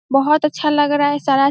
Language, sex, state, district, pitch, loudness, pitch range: Hindi, female, Bihar, Saharsa, 290 Hz, -16 LUFS, 275-300 Hz